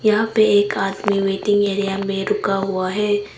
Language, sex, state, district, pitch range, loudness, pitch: Hindi, female, Arunachal Pradesh, Papum Pare, 195-210 Hz, -19 LUFS, 200 Hz